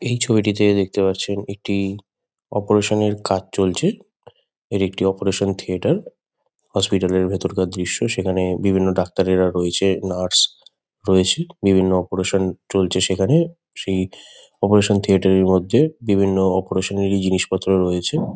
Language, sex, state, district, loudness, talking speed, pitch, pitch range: Bengali, male, West Bengal, Kolkata, -19 LUFS, 125 wpm, 95 Hz, 95-100 Hz